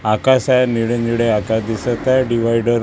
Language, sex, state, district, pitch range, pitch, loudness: Marathi, male, Maharashtra, Gondia, 115-125 Hz, 115 Hz, -16 LUFS